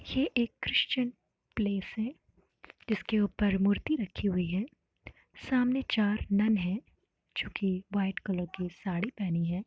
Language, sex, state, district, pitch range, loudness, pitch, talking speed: Hindi, female, Uttar Pradesh, Varanasi, 190-235 Hz, -31 LUFS, 205 Hz, 145 wpm